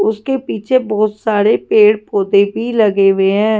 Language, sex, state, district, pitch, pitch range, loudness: Hindi, female, Delhi, New Delhi, 215 Hz, 205-220 Hz, -13 LUFS